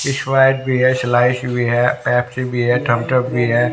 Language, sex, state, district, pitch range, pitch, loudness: Hindi, male, Haryana, Rohtak, 120-130 Hz, 125 Hz, -16 LUFS